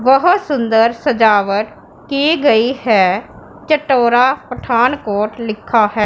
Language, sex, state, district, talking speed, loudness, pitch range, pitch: Hindi, female, Punjab, Pathankot, 110 wpm, -14 LUFS, 215-270 Hz, 235 Hz